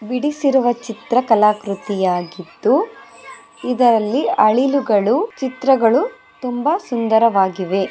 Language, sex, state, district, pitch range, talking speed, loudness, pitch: Kannada, female, Karnataka, Mysore, 205-260 Hz, 60 wpm, -17 LUFS, 230 Hz